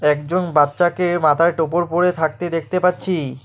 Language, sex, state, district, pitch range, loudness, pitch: Bengali, male, West Bengal, Alipurduar, 150-180 Hz, -18 LUFS, 170 Hz